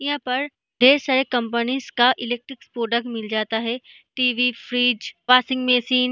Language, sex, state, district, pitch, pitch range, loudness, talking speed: Hindi, female, Bihar, East Champaran, 250 Hz, 235-255 Hz, -20 LUFS, 155 wpm